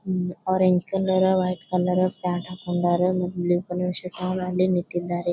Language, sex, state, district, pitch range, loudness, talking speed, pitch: Kannada, female, Karnataka, Bijapur, 175-185 Hz, -24 LUFS, 125 wpm, 180 Hz